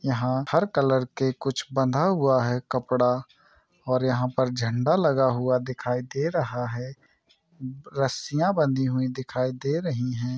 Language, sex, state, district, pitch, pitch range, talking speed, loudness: Hindi, male, Bihar, Saran, 130 Hz, 125-135 Hz, 150 wpm, -25 LUFS